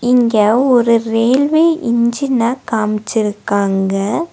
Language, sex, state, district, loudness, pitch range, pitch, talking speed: Tamil, female, Tamil Nadu, Nilgiris, -14 LUFS, 215-255 Hz, 235 Hz, 70 wpm